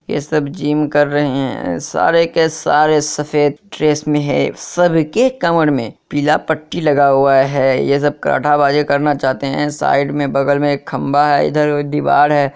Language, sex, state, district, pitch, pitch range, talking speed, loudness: Hindi, male, Bihar, Kishanganj, 145 Hz, 140-150 Hz, 185 wpm, -15 LUFS